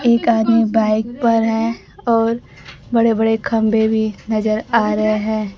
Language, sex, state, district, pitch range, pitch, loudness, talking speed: Hindi, female, Bihar, Kaimur, 220-230 Hz, 225 Hz, -17 LUFS, 150 wpm